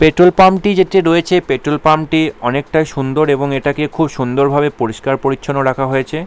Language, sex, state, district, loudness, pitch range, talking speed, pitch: Bengali, male, West Bengal, Paschim Medinipur, -14 LUFS, 135-160 Hz, 190 wpm, 150 Hz